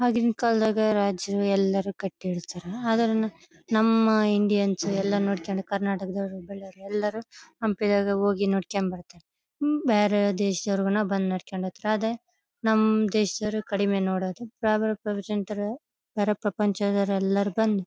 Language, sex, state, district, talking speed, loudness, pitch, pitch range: Kannada, female, Karnataka, Bellary, 105 wpm, -26 LUFS, 205 Hz, 195-220 Hz